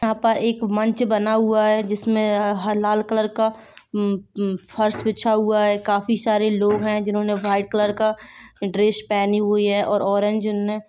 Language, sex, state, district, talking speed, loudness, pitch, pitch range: Hindi, female, Chhattisgarh, Rajnandgaon, 175 wpm, -20 LUFS, 210 Hz, 205-220 Hz